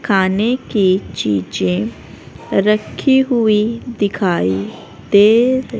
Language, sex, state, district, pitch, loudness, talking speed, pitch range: Hindi, female, Haryana, Rohtak, 210 Hz, -16 LUFS, 70 wpm, 185-235 Hz